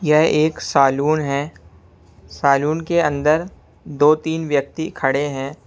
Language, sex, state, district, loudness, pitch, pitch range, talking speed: Hindi, male, Punjab, Kapurthala, -18 LUFS, 145 Hz, 135-155 Hz, 125 wpm